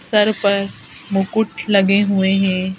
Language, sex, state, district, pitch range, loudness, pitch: Hindi, female, Madhya Pradesh, Bhopal, 190-210 Hz, -17 LUFS, 195 Hz